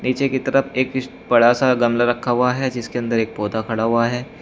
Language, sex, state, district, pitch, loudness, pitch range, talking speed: Hindi, male, Uttar Pradesh, Shamli, 120 Hz, -19 LUFS, 115-130 Hz, 230 wpm